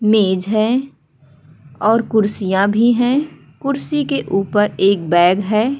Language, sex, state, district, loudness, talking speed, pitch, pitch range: Hindi, female, Uttar Pradesh, Hamirpur, -16 LUFS, 125 wpm, 210 Hz, 190-240 Hz